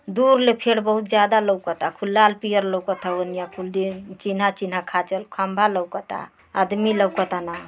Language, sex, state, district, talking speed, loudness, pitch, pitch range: Bhojpuri, female, Uttar Pradesh, Ghazipur, 150 wpm, -21 LUFS, 195 Hz, 185-210 Hz